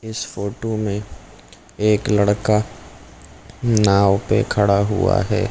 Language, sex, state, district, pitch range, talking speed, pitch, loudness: Hindi, male, Chhattisgarh, Bilaspur, 95-110 Hz, 120 wpm, 105 Hz, -19 LUFS